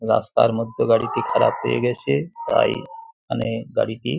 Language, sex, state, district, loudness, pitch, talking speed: Bengali, male, West Bengal, Jhargram, -21 LUFS, 140 Hz, 145 wpm